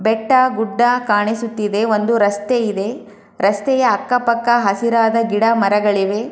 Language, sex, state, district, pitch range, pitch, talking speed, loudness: Kannada, female, Karnataka, Chamarajanagar, 205-240 Hz, 225 Hz, 115 wpm, -16 LUFS